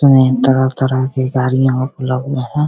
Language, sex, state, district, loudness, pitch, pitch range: Hindi, male, Bihar, Begusarai, -15 LUFS, 130 Hz, 130-135 Hz